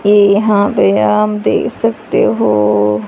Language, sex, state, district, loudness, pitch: Hindi, female, Haryana, Charkhi Dadri, -12 LUFS, 200 Hz